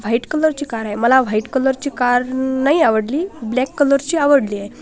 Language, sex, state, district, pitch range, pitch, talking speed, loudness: Marathi, female, Maharashtra, Washim, 230-285 Hz, 260 Hz, 210 wpm, -17 LUFS